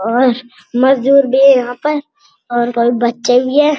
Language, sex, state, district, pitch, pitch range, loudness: Hindi, male, Uttarakhand, Uttarkashi, 255 Hz, 240-280 Hz, -13 LUFS